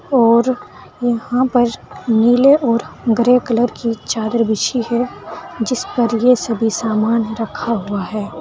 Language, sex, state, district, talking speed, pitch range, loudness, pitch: Hindi, female, Uttar Pradesh, Saharanpur, 135 wpm, 225-245 Hz, -16 LUFS, 235 Hz